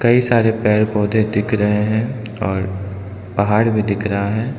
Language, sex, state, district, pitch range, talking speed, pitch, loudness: Hindi, male, Arunachal Pradesh, Lower Dibang Valley, 100-110 Hz, 170 wpm, 105 Hz, -18 LUFS